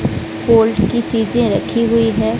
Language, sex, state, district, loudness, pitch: Hindi, female, Odisha, Sambalpur, -15 LUFS, 225 Hz